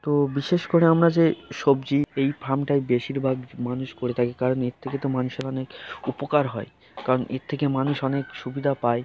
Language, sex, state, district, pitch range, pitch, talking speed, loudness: Bengali, male, West Bengal, Kolkata, 130-145 Hz, 135 Hz, 185 wpm, -24 LUFS